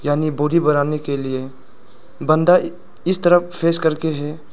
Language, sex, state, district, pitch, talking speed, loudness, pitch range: Hindi, male, Arunachal Pradesh, Lower Dibang Valley, 155 Hz, 145 wpm, -18 LUFS, 145-170 Hz